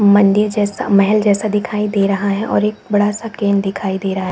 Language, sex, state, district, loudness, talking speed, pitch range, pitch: Hindi, female, Chhattisgarh, Raigarh, -16 LUFS, 210 wpm, 200-210 Hz, 205 Hz